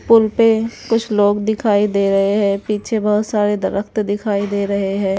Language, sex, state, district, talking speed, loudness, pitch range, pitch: Hindi, female, Bihar, West Champaran, 185 wpm, -17 LUFS, 200-220 Hz, 205 Hz